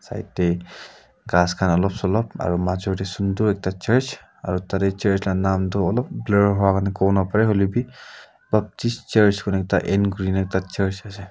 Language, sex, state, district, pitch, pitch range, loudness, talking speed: Nagamese, male, Nagaland, Kohima, 95 Hz, 95-105 Hz, -21 LUFS, 170 wpm